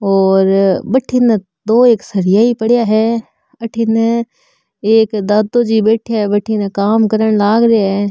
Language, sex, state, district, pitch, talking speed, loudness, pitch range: Marwari, female, Rajasthan, Nagaur, 220 Hz, 140 wpm, -13 LUFS, 205-230 Hz